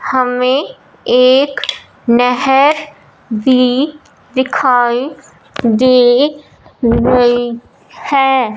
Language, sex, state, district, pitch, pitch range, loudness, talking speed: Hindi, female, Punjab, Fazilka, 255 Hz, 245-275 Hz, -12 LUFS, 55 wpm